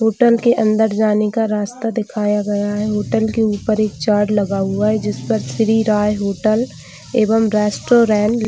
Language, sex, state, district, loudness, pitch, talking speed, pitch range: Hindi, female, Jharkhand, Jamtara, -17 LUFS, 215 Hz, 175 wpm, 210-225 Hz